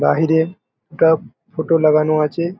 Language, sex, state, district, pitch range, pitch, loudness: Bengali, male, West Bengal, Jalpaiguri, 155-170 Hz, 160 Hz, -16 LUFS